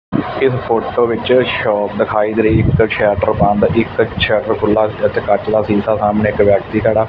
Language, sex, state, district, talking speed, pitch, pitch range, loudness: Punjabi, male, Punjab, Fazilka, 180 wpm, 110 Hz, 105-115 Hz, -14 LUFS